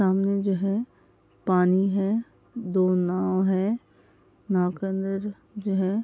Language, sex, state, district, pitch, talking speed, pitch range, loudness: Hindi, female, Bihar, East Champaran, 195 Hz, 140 wpm, 185-200 Hz, -25 LUFS